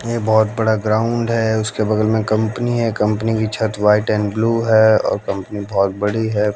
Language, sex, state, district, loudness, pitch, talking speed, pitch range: Hindi, male, Haryana, Jhajjar, -17 LUFS, 110 Hz, 200 wpm, 105-110 Hz